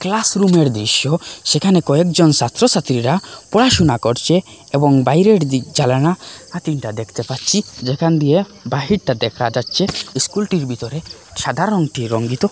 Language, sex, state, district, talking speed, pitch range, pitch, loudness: Bengali, male, Assam, Hailakandi, 115 wpm, 125-180 Hz, 150 Hz, -16 LUFS